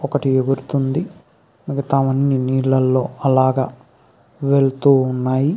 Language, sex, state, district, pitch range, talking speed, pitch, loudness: Telugu, male, Andhra Pradesh, Krishna, 130-140 Hz, 75 wpm, 135 Hz, -18 LUFS